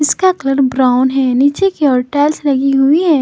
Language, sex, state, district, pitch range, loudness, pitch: Hindi, female, Jharkhand, Garhwa, 265-300 Hz, -12 LUFS, 275 Hz